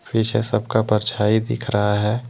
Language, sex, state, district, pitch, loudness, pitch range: Hindi, male, Jharkhand, Deoghar, 105 Hz, -20 LUFS, 105-115 Hz